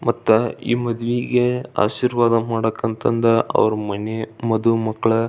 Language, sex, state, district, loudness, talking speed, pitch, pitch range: Kannada, male, Karnataka, Belgaum, -20 LUFS, 115 wpm, 115 Hz, 110-120 Hz